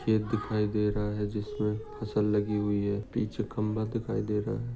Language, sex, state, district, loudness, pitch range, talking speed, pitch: Hindi, male, Maharashtra, Nagpur, -31 LUFS, 105-110 Hz, 215 wpm, 105 Hz